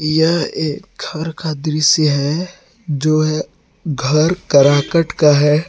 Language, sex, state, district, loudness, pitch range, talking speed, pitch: Hindi, male, Jharkhand, Garhwa, -16 LUFS, 150-165 Hz, 125 wpm, 155 Hz